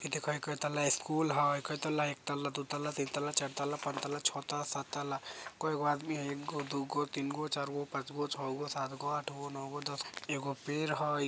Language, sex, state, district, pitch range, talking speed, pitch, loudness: Bajjika, female, Bihar, Vaishali, 140-150 Hz, 155 wpm, 145 Hz, -36 LUFS